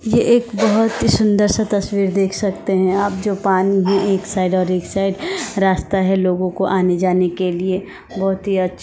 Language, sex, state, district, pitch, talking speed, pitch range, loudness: Hindi, female, Himachal Pradesh, Shimla, 195 Hz, 205 wpm, 185-205 Hz, -17 LUFS